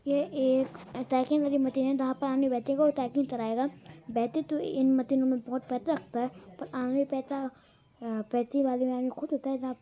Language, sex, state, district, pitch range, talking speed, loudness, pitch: Hindi, male, Bihar, East Champaran, 250-275 Hz, 120 wpm, -30 LUFS, 260 Hz